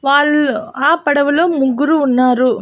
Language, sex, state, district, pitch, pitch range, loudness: Telugu, female, Andhra Pradesh, Annamaya, 285 Hz, 260-300 Hz, -13 LUFS